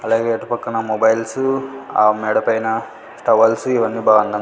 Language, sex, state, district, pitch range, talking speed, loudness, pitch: Telugu, male, Andhra Pradesh, Sri Satya Sai, 110-115 Hz, 135 wpm, -17 LUFS, 115 Hz